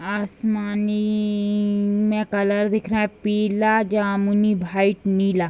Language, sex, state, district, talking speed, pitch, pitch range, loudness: Hindi, female, Bihar, Bhagalpur, 110 wpm, 210 Hz, 200-210 Hz, -21 LUFS